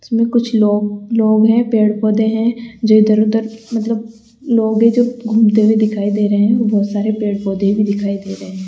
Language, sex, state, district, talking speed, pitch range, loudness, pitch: Hindi, female, Rajasthan, Jaipur, 180 wpm, 210-225 Hz, -15 LUFS, 220 Hz